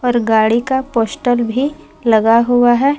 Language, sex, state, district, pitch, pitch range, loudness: Hindi, female, Jharkhand, Palamu, 245 Hz, 230-265 Hz, -14 LUFS